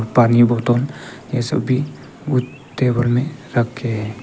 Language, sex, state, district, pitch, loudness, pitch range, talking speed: Hindi, male, Arunachal Pradesh, Papum Pare, 125 Hz, -18 LUFS, 120-130 Hz, 140 wpm